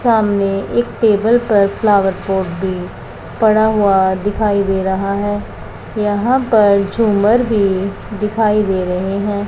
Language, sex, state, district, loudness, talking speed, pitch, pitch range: Hindi, male, Punjab, Pathankot, -15 LUFS, 135 wpm, 205 Hz, 195-215 Hz